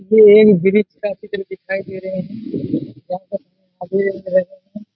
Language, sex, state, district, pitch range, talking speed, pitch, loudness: Hindi, male, Jharkhand, Jamtara, 190-215 Hz, 145 wpm, 195 Hz, -16 LUFS